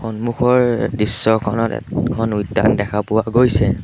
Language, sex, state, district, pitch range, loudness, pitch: Assamese, male, Assam, Sonitpur, 105-120 Hz, -17 LUFS, 110 Hz